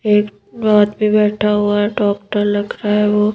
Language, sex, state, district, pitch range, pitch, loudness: Hindi, female, Madhya Pradesh, Bhopal, 205-210 Hz, 210 Hz, -15 LUFS